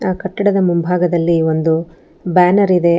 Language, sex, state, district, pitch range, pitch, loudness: Kannada, female, Karnataka, Bangalore, 170-185 Hz, 180 Hz, -15 LUFS